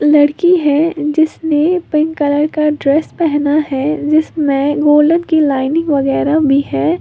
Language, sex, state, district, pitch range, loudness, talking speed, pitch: Hindi, female, Uttar Pradesh, Lalitpur, 290-315 Hz, -13 LUFS, 135 wpm, 300 Hz